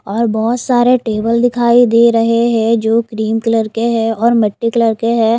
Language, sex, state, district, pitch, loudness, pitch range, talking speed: Hindi, female, Himachal Pradesh, Shimla, 230 Hz, -13 LUFS, 225-235 Hz, 190 wpm